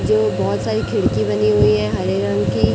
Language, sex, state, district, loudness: Hindi, female, Chhattisgarh, Raipur, -18 LUFS